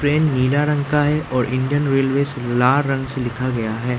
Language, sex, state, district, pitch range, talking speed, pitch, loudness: Hindi, male, Arunachal Pradesh, Lower Dibang Valley, 125-145 Hz, 210 wpm, 135 Hz, -19 LUFS